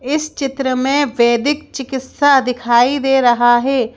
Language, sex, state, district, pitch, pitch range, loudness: Hindi, female, Madhya Pradesh, Bhopal, 265 Hz, 240-280 Hz, -15 LUFS